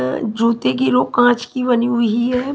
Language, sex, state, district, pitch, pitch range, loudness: Hindi, female, Himachal Pradesh, Shimla, 240 Hz, 225-245 Hz, -17 LUFS